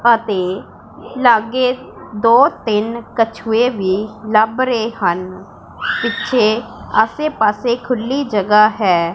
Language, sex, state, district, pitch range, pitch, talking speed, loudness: Punjabi, female, Punjab, Pathankot, 210-245 Hz, 225 Hz, 100 wpm, -16 LUFS